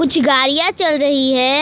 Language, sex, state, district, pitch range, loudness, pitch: Hindi, female, West Bengal, Alipurduar, 265-320 Hz, -13 LUFS, 285 Hz